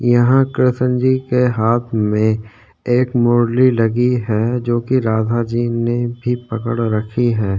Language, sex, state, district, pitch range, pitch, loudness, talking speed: Hindi, male, Chhattisgarh, Sukma, 115-125 Hz, 120 Hz, -16 LUFS, 135 wpm